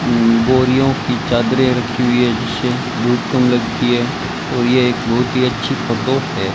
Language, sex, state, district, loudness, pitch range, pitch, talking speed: Hindi, male, Rajasthan, Bikaner, -16 LUFS, 120-130 Hz, 125 Hz, 165 wpm